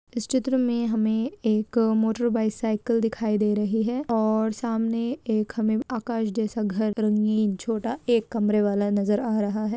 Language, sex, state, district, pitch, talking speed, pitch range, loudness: Hindi, female, Bihar, Madhepura, 220 Hz, 165 wpm, 215-235 Hz, -25 LUFS